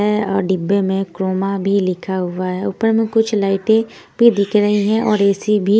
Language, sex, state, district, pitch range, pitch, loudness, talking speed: Hindi, female, Punjab, Kapurthala, 190-215 Hz, 200 Hz, -17 LUFS, 205 wpm